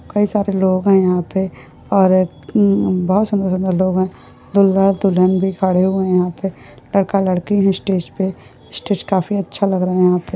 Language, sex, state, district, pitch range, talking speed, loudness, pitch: Hindi, female, West Bengal, Purulia, 185-195 Hz, 190 wpm, -16 LUFS, 190 Hz